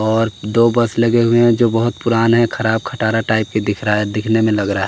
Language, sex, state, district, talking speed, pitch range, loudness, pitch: Hindi, male, Bihar, West Champaran, 260 wpm, 105-115 Hz, -15 LUFS, 110 Hz